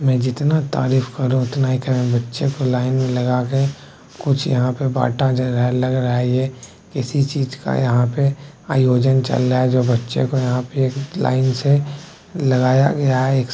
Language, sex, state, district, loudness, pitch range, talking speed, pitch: Maithili, male, Bihar, Begusarai, -18 LUFS, 125-140 Hz, 160 wpm, 130 Hz